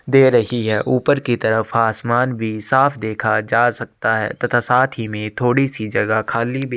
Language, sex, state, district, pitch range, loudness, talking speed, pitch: Hindi, male, Chhattisgarh, Sukma, 110-125 Hz, -18 LUFS, 205 wpm, 120 Hz